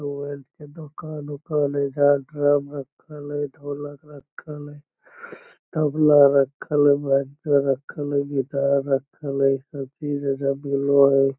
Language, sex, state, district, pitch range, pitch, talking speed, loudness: Magahi, male, Bihar, Lakhisarai, 140-145 Hz, 145 Hz, 135 wpm, -22 LUFS